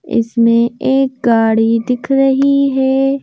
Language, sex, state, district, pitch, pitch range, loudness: Hindi, female, Madhya Pradesh, Bhopal, 260 Hz, 230-270 Hz, -13 LUFS